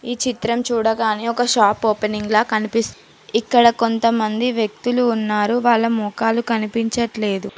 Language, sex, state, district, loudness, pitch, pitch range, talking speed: Telugu, female, Telangana, Mahabubabad, -18 LUFS, 230 Hz, 215-235 Hz, 120 wpm